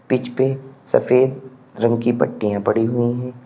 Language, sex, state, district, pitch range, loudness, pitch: Hindi, male, Uttar Pradesh, Lalitpur, 120-130 Hz, -19 LUFS, 125 Hz